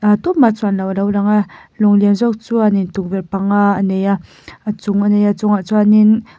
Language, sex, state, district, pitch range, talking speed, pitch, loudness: Mizo, female, Mizoram, Aizawl, 200-215 Hz, 190 wpm, 205 Hz, -15 LUFS